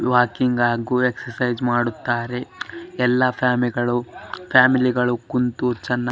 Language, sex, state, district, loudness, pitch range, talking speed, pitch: Kannada, male, Karnataka, Bellary, -20 LUFS, 120-125 Hz, 120 wpm, 125 Hz